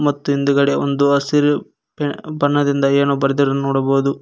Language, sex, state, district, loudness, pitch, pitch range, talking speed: Kannada, male, Karnataka, Koppal, -17 LUFS, 140 Hz, 140-145 Hz, 100 wpm